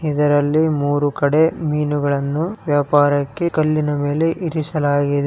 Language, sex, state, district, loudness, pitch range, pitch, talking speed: Kannada, male, Karnataka, Chamarajanagar, -18 LUFS, 145-155 Hz, 150 Hz, 90 wpm